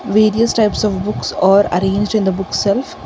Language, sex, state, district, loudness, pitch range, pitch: English, female, Karnataka, Bangalore, -15 LUFS, 195-215 Hz, 205 Hz